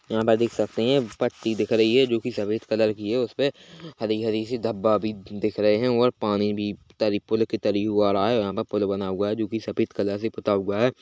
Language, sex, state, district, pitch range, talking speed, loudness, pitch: Hindi, male, Chhattisgarh, Bilaspur, 105-115 Hz, 260 wpm, -24 LUFS, 110 Hz